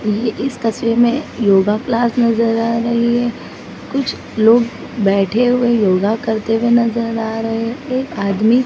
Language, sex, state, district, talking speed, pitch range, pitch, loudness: Hindi, female, Maharashtra, Mumbai Suburban, 150 wpm, 220-240 Hz, 230 Hz, -16 LUFS